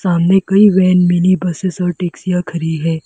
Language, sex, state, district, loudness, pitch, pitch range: Hindi, female, Arunachal Pradesh, Lower Dibang Valley, -14 LUFS, 180 Hz, 175-185 Hz